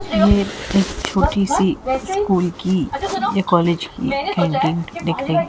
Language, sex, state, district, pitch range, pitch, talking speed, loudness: Hindi, female, Haryana, Jhajjar, 170-205 Hz, 195 Hz, 130 wpm, -19 LUFS